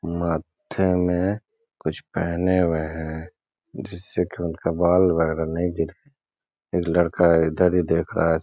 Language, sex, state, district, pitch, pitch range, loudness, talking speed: Hindi, male, Bihar, Gaya, 85 Hz, 80-90 Hz, -23 LUFS, 180 wpm